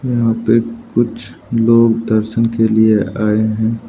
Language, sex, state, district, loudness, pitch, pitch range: Hindi, male, Arunachal Pradesh, Lower Dibang Valley, -15 LUFS, 115 Hz, 110-115 Hz